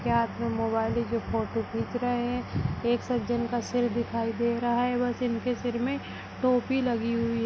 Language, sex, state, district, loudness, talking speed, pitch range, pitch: Kumaoni, female, Uttarakhand, Tehri Garhwal, -28 LUFS, 185 wpm, 230-245 Hz, 235 Hz